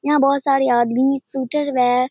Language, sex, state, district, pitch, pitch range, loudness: Hindi, female, Bihar, Purnia, 270 Hz, 250-280 Hz, -18 LUFS